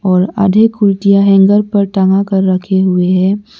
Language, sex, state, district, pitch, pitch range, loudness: Hindi, male, Arunachal Pradesh, Lower Dibang Valley, 195 Hz, 190-200 Hz, -11 LUFS